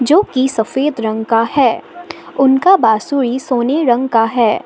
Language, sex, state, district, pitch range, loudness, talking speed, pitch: Hindi, female, Assam, Sonitpur, 225-280 Hz, -14 LUFS, 140 wpm, 255 Hz